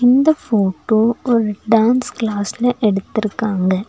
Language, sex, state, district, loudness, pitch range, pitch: Tamil, female, Tamil Nadu, Nilgiris, -17 LUFS, 205-245 Hz, 220 Hz